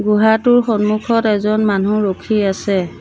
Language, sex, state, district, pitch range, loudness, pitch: Assamese, female, Assam, Sonitpur, 205-220 Hz, -15 LUFS, 210 Hz